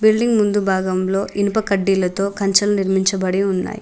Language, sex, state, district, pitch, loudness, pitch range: Telugu, female, Telangana, Mahabubabad, 195 Hz, -18 LUFS, 190-205 Hz